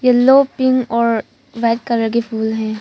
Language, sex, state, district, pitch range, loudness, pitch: Hindi, female, Arunachal Pradesh, Papum Pare, 225-255 Hz, -16 LUFS, 235 Hz